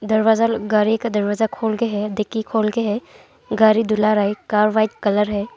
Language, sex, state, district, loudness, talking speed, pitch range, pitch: Hindi, female, Arunachal Pradesh, Longding, -19 LUFS, 195 wpm, 210-220 Hz, 215 Hz